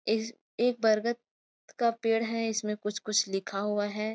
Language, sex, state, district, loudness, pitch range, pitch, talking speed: Chhattisgarhi, female, Chhattisgarh, Kabirdham, -30 LUFS, 210-230 Hz, 220 Hz, 160 wpm